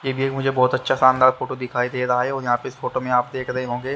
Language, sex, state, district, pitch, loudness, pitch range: Hindi, male, Haryana, Charkhi Dadri, 130 Hz, -21 LUFS, 125-130 Hz